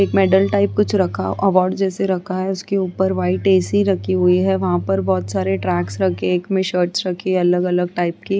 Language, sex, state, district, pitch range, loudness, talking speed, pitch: Hindi, female, Uttarakhand, Tehri Garhwal, 180-195 Hz, -18 LUFS, 230 wpm, 185 Hz